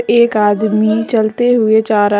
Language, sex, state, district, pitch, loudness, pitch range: Hindi, female, Jharkhand, Deoghar, 220 Hz, -12 LUFS, 210-230 Hz